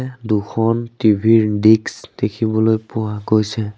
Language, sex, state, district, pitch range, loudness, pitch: Assamese, male, Assam, Sonitpur, 105-115 Hz, -17 LUFS, 110 Hz